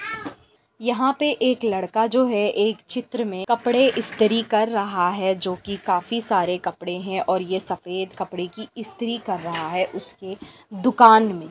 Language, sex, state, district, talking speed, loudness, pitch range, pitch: Hindi, female, Bihar, Lakhisarai, 165 wpm, -22 LUFS, 185-235 Hz, 210 Hz